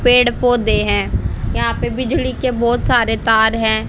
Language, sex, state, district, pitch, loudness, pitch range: Hindi, female, Haryana, Charkhi Dadri, 235 Hz, -16 LUFS, 225-245 Hz